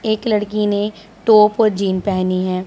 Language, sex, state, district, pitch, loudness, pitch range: Hindi, female, Punjab, Pathankot, 210 Hz, -16 LUFS, 195-215 Hz